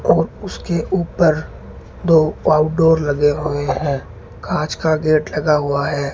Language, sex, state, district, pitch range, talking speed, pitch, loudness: Hindi, male, Rajasthan, Bikaner, 145-160 Hz, 135 wpm, 155 Hz, -17 LUFS